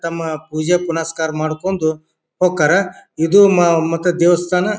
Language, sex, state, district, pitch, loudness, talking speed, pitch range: Kannada, male, Karnataka, Bijapur, 165 Hz, -16 LUFS, 115 wpm, 160-180 Hz